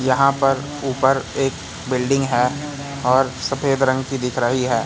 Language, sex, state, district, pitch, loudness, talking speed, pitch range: Hindi, male, Madhya Pradesh, Katni, 135 Hz, -20 LUFS, 160 wpm, 125-135 Hz